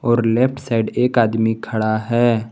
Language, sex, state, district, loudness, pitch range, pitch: Hindi, male, Jharkhand, Garhwa, -18 LUFS, 110-120 Hz, 115 Hz